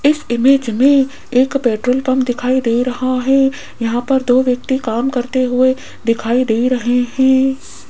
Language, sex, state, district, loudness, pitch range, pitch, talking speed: Hindi, female, Rajasthan, Jaipur, -15 LUFS, 245-265 Hz, 255 Hz, 160 wpm